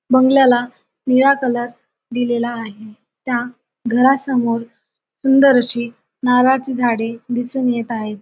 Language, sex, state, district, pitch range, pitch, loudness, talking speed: Marathi, female, Maharashtra, Sindhudurg, 235-260 Hz, 245 Hz, -16 LUFS, 100 wpm